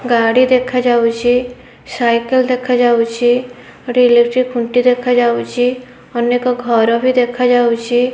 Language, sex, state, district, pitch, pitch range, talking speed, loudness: Odia, female, Odisha, Khordha, 245 Hz, 235-250 Hz, 80 wpm, -14 LUFS